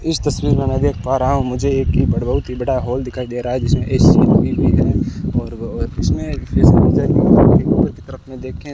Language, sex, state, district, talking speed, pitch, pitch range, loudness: Hindi, male, Rajasthan, Bikaner, 205 wpm, 130 Hz, 125-140 Hz, -16 LUFS